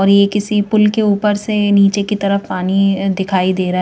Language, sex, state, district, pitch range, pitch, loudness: Hindi, female, Madhya Pradesh, Bhopal, 195-205 Hz, 200 Hz, -14 LUFS